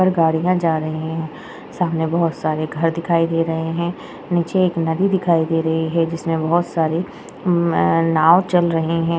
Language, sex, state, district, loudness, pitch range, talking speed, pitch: Hindi, female, Uttar Pradesh, Jyotiba Phule Nagar, -19 LUFS, 160-170 Hz, 190 wpm, 165 Hz